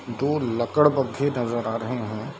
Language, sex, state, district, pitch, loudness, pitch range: Hindi, male, Bihar, East Champaran, 120 Hz, -24 LUFS, 115-140 Hz